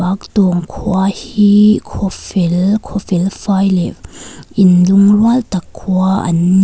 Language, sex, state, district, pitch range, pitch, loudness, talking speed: Mizo, female, Mizoram, Aizawl, 185-205 Hz, 195 Hz, -13 LUFS, 125 wpm